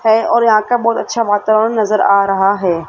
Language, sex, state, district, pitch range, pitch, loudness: Hindi, female, Rajasthan, Jaipur, 200-230 Hz, 215 Hz, -13 LUFS